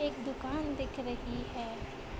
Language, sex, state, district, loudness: Hindi, female, Uttar Pradesh, Budaun, -39 LUFS